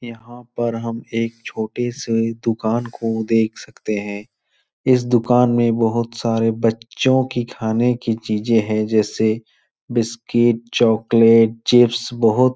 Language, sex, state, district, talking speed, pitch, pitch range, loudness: Hindi, male, Bihar, Supaul, 135 wpm, 115 Hz, 115-120 Hz, -19 LUFS